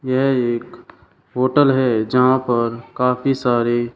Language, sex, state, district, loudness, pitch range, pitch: Hindi, male, Uttar Pradesh, Shamli, -18 LUFS, 120-130 Hz, 125 Hz